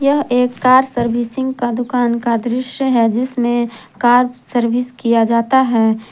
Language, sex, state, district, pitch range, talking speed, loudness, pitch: Hindi, female, Jharkhand, Garhwa, 235-255 Hz, 145 wpm, -15 LUFS, 245 Hz